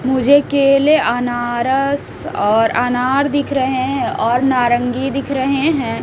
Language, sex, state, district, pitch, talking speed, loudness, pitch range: Hindi, female, Haryana, Rohtak, 265 Hz, 130 wpm, -15 LUFS, 245-280 Hz